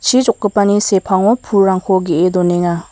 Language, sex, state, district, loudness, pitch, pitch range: Garo, female, Meghalaya, West Garo Hills, -14 LUFS, 195 Hz, 180-205 Hz